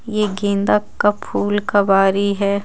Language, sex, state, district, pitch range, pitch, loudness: Hindi, female, Jharkhand, Ranchi, 195-205 Hz, 200 Hz, -17 LUFS